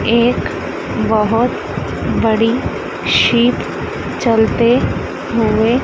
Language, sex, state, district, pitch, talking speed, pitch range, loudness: Hindi, female, Madhya Pradesh, Dhar, 230 Hz, 60 wpm, 220-240 Hz, -15 LUFS